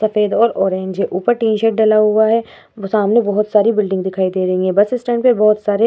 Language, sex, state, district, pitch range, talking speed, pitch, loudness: Hindi, female, Bihar, Vaishali, 195-225 Hz, 265 wpm, 215 Hz, -15 LUFS